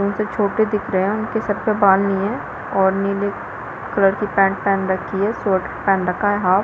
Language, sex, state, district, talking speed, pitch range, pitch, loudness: Hindi, female, Chhattisgarh, Balrampur, 225 wpm, 195-210 Hz, 200 Hz, -19 LUFS